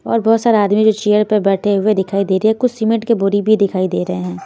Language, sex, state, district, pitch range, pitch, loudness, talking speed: Hindi, female, Haryana, Jhajjar, 195-220 Hz, 210 Hz, -15 LUFS, 295 wpm